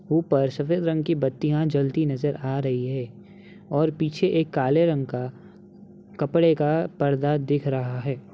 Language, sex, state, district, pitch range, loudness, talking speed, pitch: Hindi, male, Bihar, Begusarai, 140-165 Hz, -24 LUFS, 160 wpm, 150 Hz